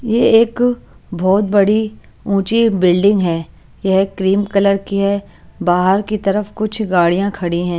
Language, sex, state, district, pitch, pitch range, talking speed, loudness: Hindi, female, Chandigarh, Chandigarh, 200 Hz, 190-215 Hz, 145 wpm, -15 LUFS